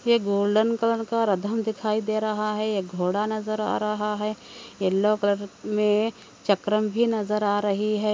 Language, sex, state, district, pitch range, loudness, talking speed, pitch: Hindi, female, Andhra Pradesh, Anantapur, 205-215 Hz, -25 LUFS, 175 wpm, 210 Hz